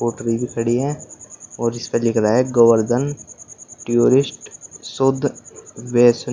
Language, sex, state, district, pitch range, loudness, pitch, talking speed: Hindi, male, Uttar Pradesh, Shamli, 115-125 Hz, -18 LUFS, 120 Hz, 125 wpm